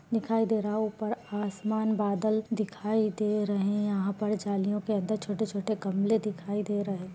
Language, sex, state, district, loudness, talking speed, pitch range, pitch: Hindi, female, Uttar Pradesh, Ghazipur, -30 LUFS, 160 wpm, 200-215 Hz, 210 Hz